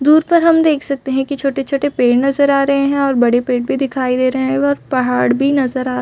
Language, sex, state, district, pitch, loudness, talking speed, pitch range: Hindi, female, Chhattisgarh, Raigarh, 275 Hz, -15 LUFS, 270 wpm, 255-280 Hz